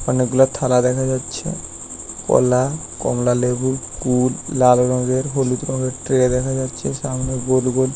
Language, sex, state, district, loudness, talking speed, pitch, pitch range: Bengali, male, West Bengal, Paschim Medinipur, -19 LUFS, 100 wpm, 130 Hz, 125-130 Hz